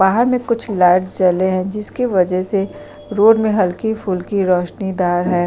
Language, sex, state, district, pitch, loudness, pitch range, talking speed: Hindi, female, Chhattisgarh, Sukma, 190 Hz, -17 LUFS, 180-210 Hz, 175 wpm